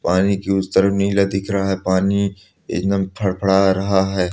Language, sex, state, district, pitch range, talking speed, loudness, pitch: Hindi, male, Andhra Pradesh, Srikakulam, 95-100 Hz, 220 wpm, -18 LUFS, 95 Hz